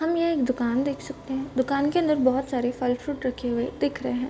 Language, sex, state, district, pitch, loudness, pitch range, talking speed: Hindi, female, Uttar Pradesh, Varanasi, 265 Hz, -26 LUFS, 250-285 Hz, 265 wpm